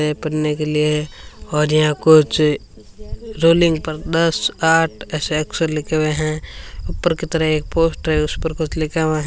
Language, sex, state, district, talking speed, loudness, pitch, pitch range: Hindi, female, Rajasthan, Bikaner, 180 wpm, -18 LUFS, 155 Hz, 150-160 Hz